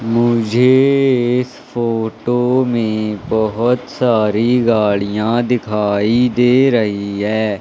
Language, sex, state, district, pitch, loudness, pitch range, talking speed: Hindi, male, Madhya Pradesh, Katni, 115 Hz, -15 LUFS, 110-125 Hz, 85 wpm